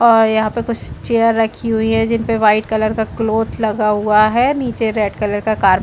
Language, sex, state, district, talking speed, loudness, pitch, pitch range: Hindi, female, Chhattisgarh, Bilaspur, 235 wpm, -16 LUFS, 220 Hz, 215-230 Hz